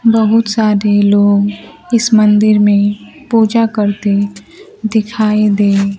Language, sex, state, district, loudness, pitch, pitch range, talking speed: Hindi, female, Bihar, Kaimur, -12 LUFS, 210 Hz, 205-220 Hz, 100 wpm